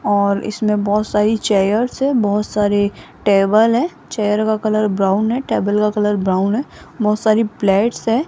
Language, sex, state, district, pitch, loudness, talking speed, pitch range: Hindi, female, Rajasthan, Jaipur, 210 Hz, -17 LUFS, 175 wpm, 205-225 Hz